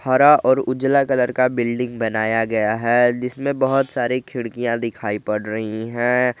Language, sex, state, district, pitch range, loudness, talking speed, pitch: Hindi, male, Jharkhand, Garhwa, 115-130 Hz, -19 LUFS, 160 wpm, 120 Hz